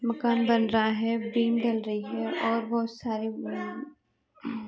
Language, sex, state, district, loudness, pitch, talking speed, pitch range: Hindi, female, Uttar Pradesh, Varanasi, -28 LUFS, 230 Hz, 165 wpm, 220-235 Hz